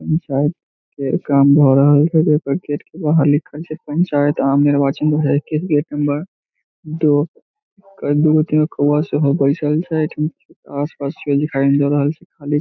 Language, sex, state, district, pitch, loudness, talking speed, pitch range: Maithili, male, Bihar, Samastipur, 150 Hz, -17 LUFS, 95 wpm, 145-155 Hz